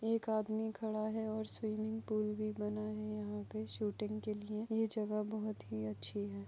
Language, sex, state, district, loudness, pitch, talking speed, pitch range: Hindi, female, Goa, North and South Goa, -40 LUFS, 215 Hz, 195 wpm, 210-220 Hz